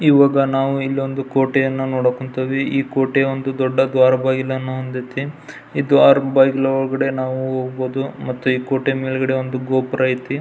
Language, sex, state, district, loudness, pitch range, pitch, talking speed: Kannada, male, Karnataka, Belgaum, -18 LUFS, 130-135 Hz, 135 Hz, 140 wpm